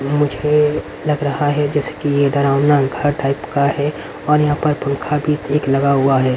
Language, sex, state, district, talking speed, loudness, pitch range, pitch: Hindi, male, Haryana, Rohtak, 200 wpm, -17 LUFS, 140-150 Hz, 145 Hz